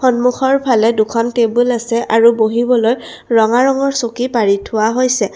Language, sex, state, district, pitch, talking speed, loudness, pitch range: Assamese, female, Assam, Kamrup Metropolitan, 235 Hz, 145 wpm, -14 LUFS, 225-250 Hz